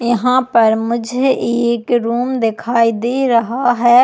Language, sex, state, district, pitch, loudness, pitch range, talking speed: Hindi, female, Chhattisgarh, Jashpur, 240 Hz, -15 LUFS, 230-250 Hz, 135 wpm